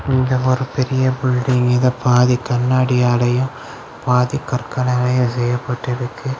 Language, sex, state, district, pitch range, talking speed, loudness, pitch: Tamil, male, Tamil Nadu, Kanyakumari, 125-130 Hz, 105 wpm, -17 LUFS, 125 Hz